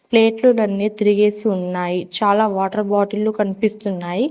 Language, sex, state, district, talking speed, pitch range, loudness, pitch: Telugu, female, Telangana, Mahabubabad, 95 wpm, 195-215 Hz, -18 LUFS, 210 Hz